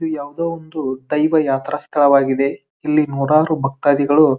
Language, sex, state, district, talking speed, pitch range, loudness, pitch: Kannada, male, Karnataka, Dharwad, 135 wpm, 140-155 Hz, -17 LUFS, 150 Hz